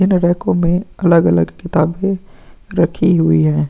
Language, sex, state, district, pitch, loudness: Hindi, male, Bihar, Vaishali, 170 Hz, -15 LUFS